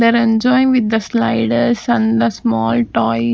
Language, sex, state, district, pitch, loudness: English, female, Maharashtra, Gondia, 220 Hz, -15 LUFS